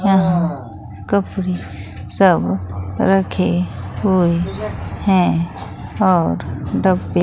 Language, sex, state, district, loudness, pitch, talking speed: Hindi, female, Bihar, Katihar, -18 LUFS, 100 Hz, 65 wpm